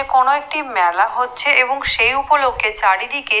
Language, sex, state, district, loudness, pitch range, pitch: Bengali, female, Odisha, Nuapada, -15 LUFS, 215-280 Hz, 255 Hz